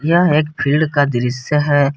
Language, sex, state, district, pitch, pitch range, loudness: Hindi, male, Jharkhand, Garhwa, 145 Hz, 140-150 Hz, -16 LUFS